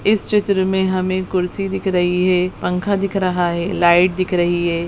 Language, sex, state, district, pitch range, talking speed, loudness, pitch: Hindi, female, Bihar, Jahanabad, 175-190 Hz, 195 wpm, -18 LUFS, 185 Hz